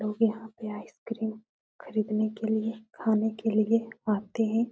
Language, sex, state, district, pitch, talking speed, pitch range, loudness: Hindi, female, Uttar Pradesh, Etah, 220 Hz, 155 wpm, 215-225 Hz, -29 LUFS